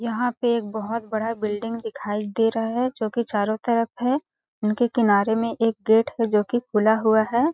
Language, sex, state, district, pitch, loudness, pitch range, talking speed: Hindi, female, Chhattisgarh, Balrampur, 225 Hz, -23 LUFS, 220-240 Hz, 190 wpm